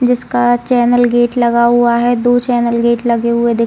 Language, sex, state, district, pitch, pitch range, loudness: Hindi, female, Bihar, Saran, 240 Hz, 235-245 Hz, -12 LUFS